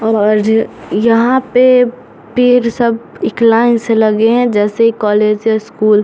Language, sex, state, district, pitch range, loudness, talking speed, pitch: Hindi, male, Bihar, Samastipur, 215-240 Hz, -12 LUFS, 150 wpm, 230 Hz